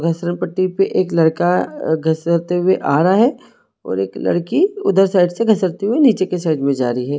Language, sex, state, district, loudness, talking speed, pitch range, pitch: Hindi, male, Jharkhand, Sahebganj, -17 LUFS, 200 wpm, 160-195 Hz, 175 Hz